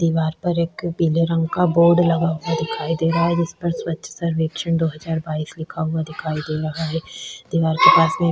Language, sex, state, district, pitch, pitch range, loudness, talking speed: Hindi, female, Chhattisgarh, Sukma, 165 Hz, 160-170 Hz, -20 LUFS, 210 wpm